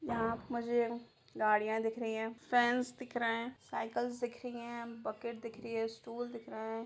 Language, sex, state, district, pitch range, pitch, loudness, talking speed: Hindi, female, Bihar, Sitamarhi, 225-240 Hz, 235 Hz, -37 LUFS, 200 wpm